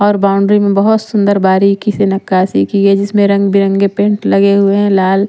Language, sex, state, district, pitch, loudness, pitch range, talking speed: Hindi, female, Haryana, Rohtak, 200 Hz, -11 LUFS, 195-205 Hz, 205 wpm